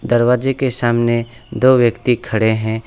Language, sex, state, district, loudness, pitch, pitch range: Hindi, male, West Bengal, Alipurduar, -15 LUFS, 120 Hz, 115-125 Hz